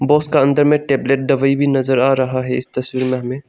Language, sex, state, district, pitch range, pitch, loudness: Hindi, male, Arunachal Pradesh, Longding, 130-140 Hz, 135 Hz, -15 LUFS